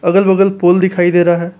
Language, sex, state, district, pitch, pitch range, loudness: Hindi, male, Jharkhand, Palamu, 180 Hz, 175-190 Hz, -12 LUFS